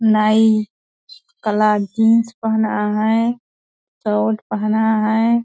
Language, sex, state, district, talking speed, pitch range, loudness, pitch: Hindi, female, Bihar, Purnia, 90 wpm, 215-225 Hz, -17 LUFS, 220 Hz